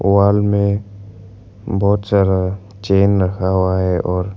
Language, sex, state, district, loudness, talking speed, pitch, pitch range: Hindi, male, Arunachal Pradesh, Lower Dibang Valley, -16 LUFS, 125 wpm, 100 Hz, 95-100 Hz